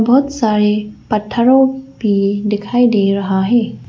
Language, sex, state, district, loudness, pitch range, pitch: Hindi, female, Arunachal Pradesh, Lower Dibang Valley, -15 LUFS, 205-245 Hz, 215 Hz